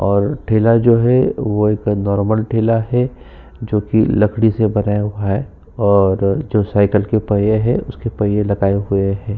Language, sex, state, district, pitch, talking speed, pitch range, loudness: Hindi, male, Uttar Pradesh, Jyotiba Phule Nagar, 105 Hz, 165 wpm, 100-110 Hz, -16 LUFS